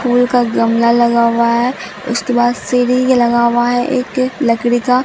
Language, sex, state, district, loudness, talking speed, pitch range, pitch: Hindi, female, Bihar, Katihar, -13 LUFS, 180 wpm, 235-250 Hz, 240 Hz